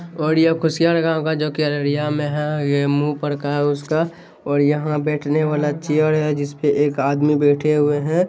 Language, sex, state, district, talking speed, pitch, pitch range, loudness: Hindi, male, Bihar, Saharsa, 215 wpm, 150 Hz, 145-155 Hz, -19 LUFS